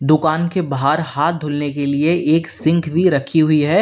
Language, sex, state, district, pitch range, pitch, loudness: Hindi, male, Uttar Pradesh, Lalitpur, 145-165 Hz, 155 Hz, -17 LUFS